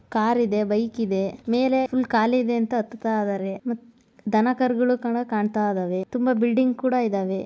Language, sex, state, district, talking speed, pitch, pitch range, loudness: Kannada, male, Karnataka, Mysore, 130 wpm, 235 Hz, 210-250 Hz, -23 LUFS